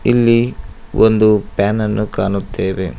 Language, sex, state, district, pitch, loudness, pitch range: Kannada, male, Karnataka, Koppal, 105 Hz, -15 LUFS, 95-110 Hz